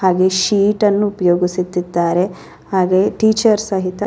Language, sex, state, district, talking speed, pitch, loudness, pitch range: Kannada, female, Karnataka, Raichur, 120 wpm, 185 Hz, -16 LUFS, 180-205 Hz